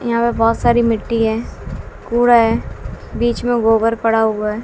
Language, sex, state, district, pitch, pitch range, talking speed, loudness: Hindi, female, Bihar, West Champaran, 230 Hz, 225-235 Hz, 180 wpm, -16 LUFS